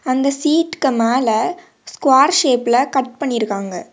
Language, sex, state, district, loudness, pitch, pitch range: Tamil, female, Tamil Nadu, Kanyakumari, -16 LUFS, 265 Hz, 235-285 Hz